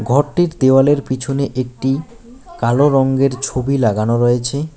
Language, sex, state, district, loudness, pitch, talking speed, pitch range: Bengali, male, West Bengal, Alipurduar, -16 LUFS, 135 Hz, 115 wpm, 130-145 Hz